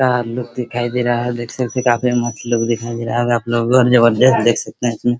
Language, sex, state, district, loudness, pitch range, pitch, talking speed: Hindi, male, Bihar, Araria, -17 LUFS, 120-125 Hz, 120 Hz, 275 wpm